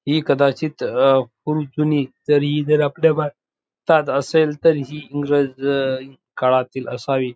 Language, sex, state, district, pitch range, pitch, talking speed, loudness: Marathi, male, Maharashtra, Dhule, 135-150 Hz, 145 Hz, 130 wpm, -19 LUFS